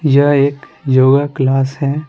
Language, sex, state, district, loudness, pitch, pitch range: Hindi, male, Bihar, Patna, -13 LUFS, 140 Hz, 135-145 Hz